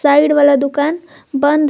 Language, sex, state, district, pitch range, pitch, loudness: Hindi, female, Jharkhand, Garhwa, 285-300 Hz, 290 Hz, -13 LUFS